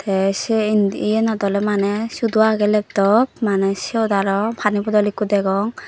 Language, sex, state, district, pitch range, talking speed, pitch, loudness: Chakma, female, Tripura, Dhalai, 200-220 Hz, 165 wpm, 210 Hz, -18 LUFS